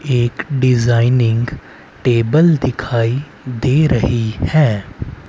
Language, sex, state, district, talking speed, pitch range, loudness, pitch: Hindi, male, Haryana, Rohtak, 80 wpm, 115-135 Hz, -15 LUFS, 125 Hz